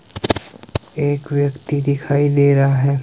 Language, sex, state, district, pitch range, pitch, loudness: Hindi, male, Himachal Pradesh, Shimla, 140-145 Hz, 140 Hz, -18 LUFS